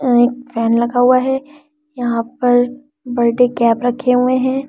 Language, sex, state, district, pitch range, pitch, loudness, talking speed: Hindi, female, Delhi, New Delhi, 240-265 Hz, 250 Hz, -15 LUFS, 165 wpm